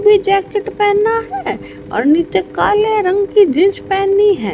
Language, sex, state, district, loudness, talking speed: Hindi, female, Haryana, Jhajjar, -14 LUFS, 160 wpm